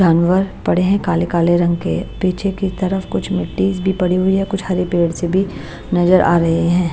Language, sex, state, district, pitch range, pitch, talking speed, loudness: Hindi, female, Bihar, Patna, 175-190 Hz, 180 Hz, 210 wpm, -17 LUFS